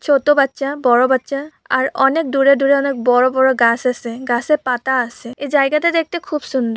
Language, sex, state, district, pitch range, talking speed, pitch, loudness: Bengali, female, West Bengal, Purulia, 250-285 Hz, 185 wpm, 270 Hz, -16 LUFS